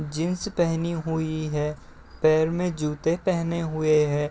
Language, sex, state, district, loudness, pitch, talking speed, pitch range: Hindi, male, Uttar Pradesh, Deoria, -25 LUFS, 160 Hz, 140 wpm, 150-170 Hz